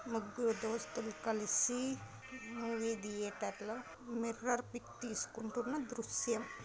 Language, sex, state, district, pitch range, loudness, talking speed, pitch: Telugu, female, Andhra Pradesh, Guntur, 220-245 Hz, -40 LUFS, 100 wpm, 230 Hz